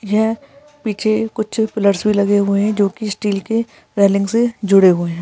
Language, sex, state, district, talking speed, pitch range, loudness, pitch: Hindi, female, Rajasthan, Churu, 195 wpm, 200-225 Hz, -16 LUFS, 210 Hz